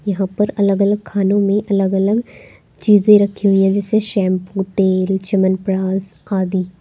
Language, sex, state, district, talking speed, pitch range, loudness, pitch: Hindi, female, Uttar Pradesh, Saharanpur, 150 wpm, 190-205 Hz, -16 LUFS, 195 Hz